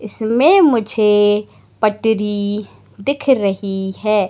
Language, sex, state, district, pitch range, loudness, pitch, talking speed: Hindi, female, Madhya Pradesh, Katni, 205-225 Hz, -16 LUFS, 210 Hz, 85 wpm